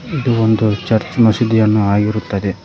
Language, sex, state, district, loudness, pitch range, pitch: Kannada, male, Karnataka, Koppal, -15 LUFS, 105-115 Hz, 110 Hz